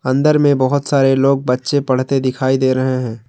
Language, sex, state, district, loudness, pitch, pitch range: Hindi, male, Jharkhand, Garhwa, -15 LUFS, 135 Hz, 130-140 Hz